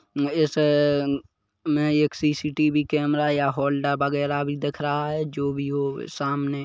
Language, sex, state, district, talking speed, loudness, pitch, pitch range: Hindi, male, Chhattisgarh, Kabirdham, 170 wpm, -24 LUFS, 145 Hz, 140-150 Hz